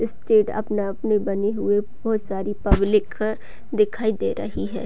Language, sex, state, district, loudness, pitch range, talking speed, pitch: Hindi, female, Chhattisgarh, Raigarh, -23 LUFS, 205-220 Hz, 135 wpm, 210 Hz